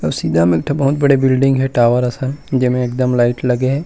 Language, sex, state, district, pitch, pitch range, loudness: Chhattisgarhi, male, Chhattisgarh, Rajnandgaon, 130 Hz, 125-135 Hz, -15 LUFS